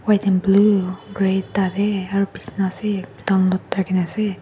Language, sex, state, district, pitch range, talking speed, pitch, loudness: Nagamese, female, Nagaland, Dimapur, 190-200 Hz, 165 wpm, 195 Hz, -20 LUFS